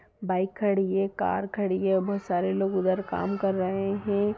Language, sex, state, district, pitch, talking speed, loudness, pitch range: Hindi, female, Bihar, Sitamarhi, 195 Hz, 190 wpm, -27 LUFS, 190-200 Hz